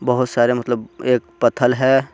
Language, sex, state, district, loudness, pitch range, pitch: Hindi, male, Jharkhand, Garhwa, -18 LUFS, 120-130 Hz, 125 Hz